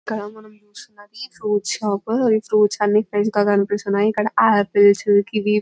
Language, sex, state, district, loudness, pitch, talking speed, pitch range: Telugu, female, Telangana, Nalgonda, -18 LUFS, 210 Hz, 170 wpm, 205-215 Hz